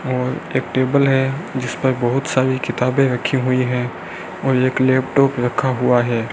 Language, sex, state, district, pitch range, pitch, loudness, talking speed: Hindi, male, Rajasthan, Bikaner, 125-135 Hz, 130 Hz, -18 LUFS, 170 wpm